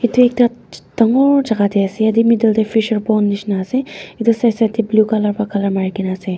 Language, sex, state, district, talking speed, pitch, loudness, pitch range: Nagamese, female, Nagaland, Dimapur, 225 wpm, 220 Hz, -15 LUFS, 205-235 Hz